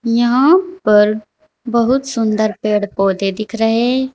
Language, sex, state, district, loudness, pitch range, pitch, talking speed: Hindi, female, Uttar Pradesh, Shamli, -15 LUFS, 215-260 Hz, 230 Hz, 115 wpm